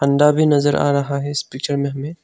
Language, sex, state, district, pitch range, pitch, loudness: Hindi, male, Arunachal Pradesh, Longding, 140-145 Hz, 145 Hz, -18 LUFS